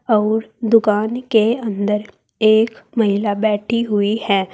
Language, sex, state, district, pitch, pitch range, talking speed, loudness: Hindi, female, Uttar Pradesh, Saharanpur, 215 Hz, 210-225 Hz, 120 wpm, -17 LUFS